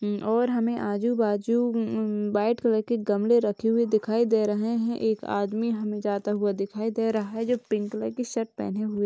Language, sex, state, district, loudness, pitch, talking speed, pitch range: Hindi, female, Uttar Pradesh, Gorakhpur, -26 LUFS, 220 Hz, 210 wpm, 210-230 Hz